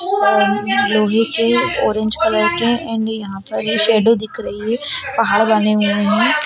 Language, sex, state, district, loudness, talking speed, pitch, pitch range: Hindi, female, Bihar, Jamui, -16 LUFS, 165 wpm, 220 Hz, 210-230 Hz